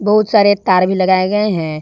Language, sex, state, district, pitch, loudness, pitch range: Hindi, female, Jharkhand, Ranchi, 190 Hz, -13 LUFS, 185-210 Hz